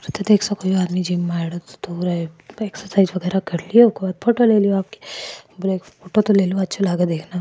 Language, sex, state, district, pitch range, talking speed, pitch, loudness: Marwari, female, Rajasthan, Churu, 180-205 Hz, 105 wpm, 190 Hz, -19 LUFS